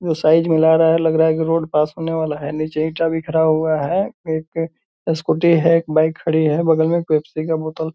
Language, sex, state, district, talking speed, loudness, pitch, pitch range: Hindi, male, Bihar, Purnia, 240 wpm, -18 LUFS, 160 Hz, 155-165 Hz